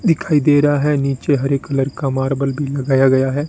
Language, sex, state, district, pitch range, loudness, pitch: Hindi, male, Rajasthan, Bikaner, 135-145 Hz, -16 LUFS, 140 Hz